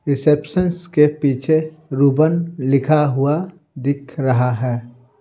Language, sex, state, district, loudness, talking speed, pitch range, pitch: Hindi, male, Bihar, Patna, -18 LUFS, 105 wpm, 135-155 Hz, 145 Hz